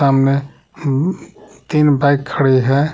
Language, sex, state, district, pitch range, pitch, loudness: Hindi, male, Jharkhand, Palamu, 135-150 Hz, 140 Hz, -16 LUFS